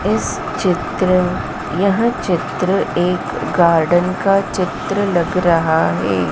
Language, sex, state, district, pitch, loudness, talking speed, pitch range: Hindi, female, Madhya Pradesh, Dhar, 180 Hz, -17 LUFS, 105 wpm, 165-195 Hz